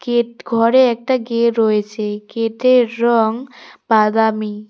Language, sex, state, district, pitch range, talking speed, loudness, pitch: Bengali, female, West Bengal, Cooch Behar, 220-240 Hz, 100 wpm, -16 LUFS, 230 Hz